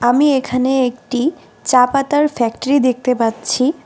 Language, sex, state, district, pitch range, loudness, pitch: Bengali, female, West Bengal, Alipurduar, 245-280 Hz, -16 LUFS, 255 Hz